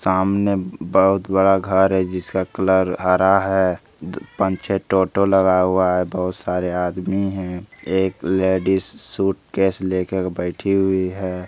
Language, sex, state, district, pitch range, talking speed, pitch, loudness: Hindi, male, Bihar, Bhagalpur, 90-95 Hz, 140 wpm, 95 Hz, -19 LUFS